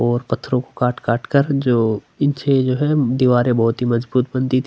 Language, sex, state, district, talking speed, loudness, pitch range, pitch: Hindi, male, Chhattisgarh, Sukma, 220 wpm, -18 LUFS, 120-135 Hz, 125 Hz